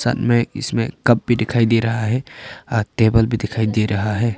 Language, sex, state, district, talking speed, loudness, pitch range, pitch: Hindi, male, Arunachal Pradesh, Papum Pare, 220 wpm, -18 LUFS, 110-120 Hz, 115 Hz